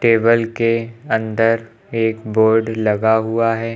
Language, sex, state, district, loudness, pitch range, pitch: Hindi, male, Uttar Pradesh, Lucknow, -17 LUFS, 110-115 Hz, 115 Hz